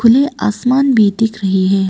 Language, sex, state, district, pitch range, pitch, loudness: Hindi, female, Arunachal Pradesh, Papum Pare, 195-255 Hz, 220 Hz, -13 LUFS